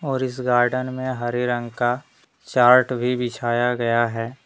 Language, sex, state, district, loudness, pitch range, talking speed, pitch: Hindi, male, Jharkhand, Deoghar, -21 LUFS, 120-130 Hz, 160 wpm, 125 Hz